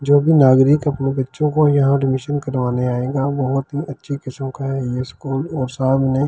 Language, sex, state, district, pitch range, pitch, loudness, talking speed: Hindi, male, Delhi, New Delhi, 130-145 Hz, 135 Hz, -18 LUFS, 200 wpm